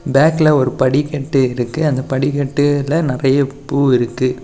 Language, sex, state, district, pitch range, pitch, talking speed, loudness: Tamil, male, Tamil Nadu, Kanyakumari, 130-145 Hz, 140 Hz, 120 wpm, -16 LUFS